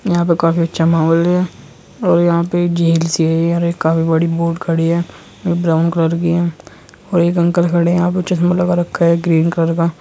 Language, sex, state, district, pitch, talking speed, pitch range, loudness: Hindi, male, Uttar Pradesh, Muzaffarnagar, 170 Hz, 210 wpm, 165-175 Hz, -15 LUFS